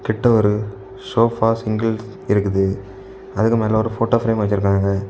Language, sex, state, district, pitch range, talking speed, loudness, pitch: Tamil, male, Tamil Nadu, Kanyakumari, 100-115 Hz, 130 wpm, -19 LUFS, 110 Hz